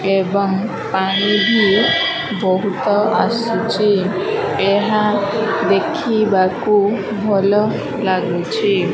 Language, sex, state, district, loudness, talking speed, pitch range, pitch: Odia, female, Odisha, Malkangiri, -16 LUFS, 55 wpm, 195-220 Hz, 205 Hz